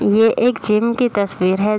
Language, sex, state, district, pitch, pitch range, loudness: Hindi, female, Bihar, Saharsa, 215 Hz, 200-235 Hz, -17 LUFS